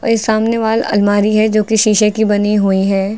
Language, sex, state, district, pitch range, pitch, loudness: Hindi, female, Uttar Pradesh, Lucknow, 205-220 Hz, 215 Hz, -13 LUFS